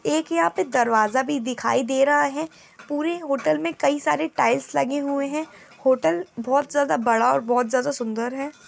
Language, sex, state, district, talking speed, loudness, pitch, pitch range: Angika, female, Bihar, Madhepura, 185 wpm, -22 LUFS, 270 Hz, 235-290 Hz